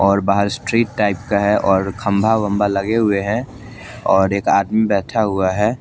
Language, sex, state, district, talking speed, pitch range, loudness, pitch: Hindi, male, Chandigarh, Chandigarh, 185 wpm, 100-110 Hz, -17 LUFS, 105 Hz